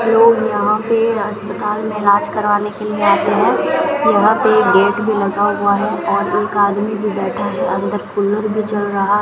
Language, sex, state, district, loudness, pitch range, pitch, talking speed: Hindi, female, Rajasthan, Bikaner, -15 LUFS, 205-215 Hz, 210 Hz, 195 wpm